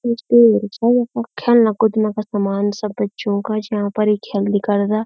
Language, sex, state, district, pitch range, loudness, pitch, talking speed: Garhwali, female, Uttarakhand, Uttarkashi, 205-230 Hz, -17 LUFS, 215 Hz, 140 wpm